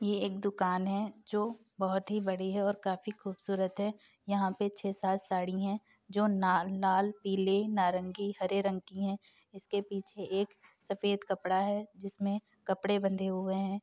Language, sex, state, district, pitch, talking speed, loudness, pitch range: Hindi, female, Uttar Pradesh, Varanasi, 195 Hz, 170 wpm, -34 LUFS, 190-205 Hz